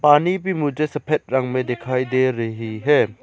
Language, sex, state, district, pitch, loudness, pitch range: Hindi, male, Arunachal Pradesh, Lower Dibang Valley, 130 Hz, -20 LUFS, 125-150 Hz